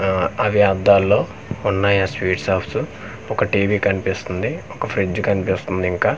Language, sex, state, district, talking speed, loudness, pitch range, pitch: Telugu, male, Andhra Pradesh, Manyam, 135 wpm, -19 LUFS, 95-100 Hz, 100 Hz